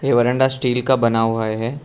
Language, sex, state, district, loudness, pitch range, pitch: Hindi, male, Arunachal Pradesh, Lower Dibang Valley, -17 LUFS, 115-130 Hz, 125 Hz